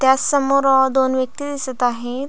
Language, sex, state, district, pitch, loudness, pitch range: Marathi, female, Maharashtra, Aurangabad, 265 Hz, -18 LUFS, 260-275 Hz